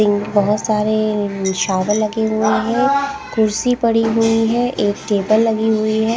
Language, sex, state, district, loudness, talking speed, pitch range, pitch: Hindi, female, Punjab, Pathankot, -17 LUFS, 175 wpm, 210-225 Hz, 215 Hz